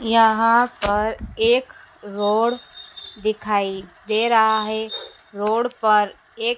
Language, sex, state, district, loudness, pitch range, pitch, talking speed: Hindi, female, Madhya Pradesh, Dhar, -20 LUFS, 210-240 Hz, 220 Hz, 100 wpm